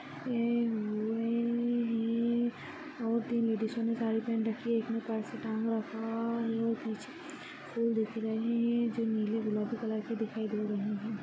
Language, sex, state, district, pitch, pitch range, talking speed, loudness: Hindi, female, Chhattisgarh, Balrampur, 230 Hz, 220-235 Hz, 160 wpm, -33 LUFS